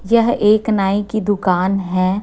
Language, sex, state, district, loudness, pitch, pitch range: Hindi, female, Chhattisgarh, Raipur, -16 LUFS, 200 Hz, 190-215 Hz